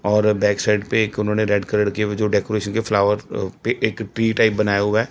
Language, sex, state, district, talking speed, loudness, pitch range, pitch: Hindi, male, Chandigarh, Chandigarh, 235 wpm, -20 LUFS, 105-110 Hz, 105 Hz